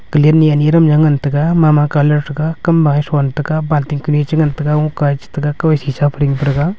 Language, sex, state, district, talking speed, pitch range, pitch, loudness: Wancho, male, Arunachal Pradesh, Longding, 210 wpm, 145-155 Hz, 150 Hz, -13 LUFS